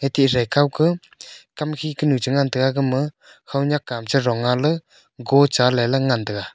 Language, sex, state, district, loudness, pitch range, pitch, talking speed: Wancho, male, Arunachal Pradesh, Longding, -20 LUFS, 125-145 Hz, 135 Hz, 130 wpm